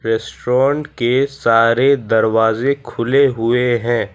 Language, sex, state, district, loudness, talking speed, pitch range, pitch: Hindi, male, Gujarat, Valsad, -16 LUFS, 100 wpm, 115-135 Hz, 120 Hz